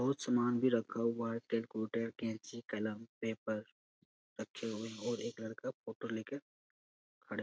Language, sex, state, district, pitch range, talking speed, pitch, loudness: Hindi, male, Bihar, Supaul, 110-120 Hz, 170 wpm, 115 Hz, -39 LUFS